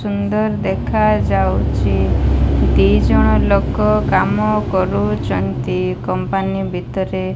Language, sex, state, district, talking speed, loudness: Odia, female, Odisha, Malkangiri, 80 wpm, -16 LUFS